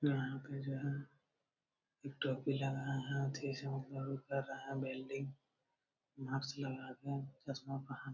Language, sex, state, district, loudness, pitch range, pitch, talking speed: Hindi, male, Bihar, Jamui, -43 LUFS, 135-140 Hz, 135 Hz, 135 wpm